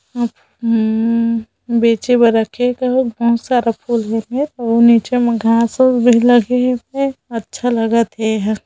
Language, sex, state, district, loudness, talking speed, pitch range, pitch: Hindi, female, Chhattisgarh, Bilaspur, -15 LUFS, 160 wpm, 230-245 Hz, 235 Hz